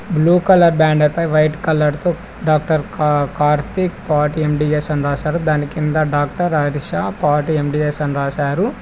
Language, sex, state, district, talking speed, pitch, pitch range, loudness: Telugu, male, Telangana, Mahabubabad, 110 wpm, 150 Hz, 150-165 Hz, -17 LUFS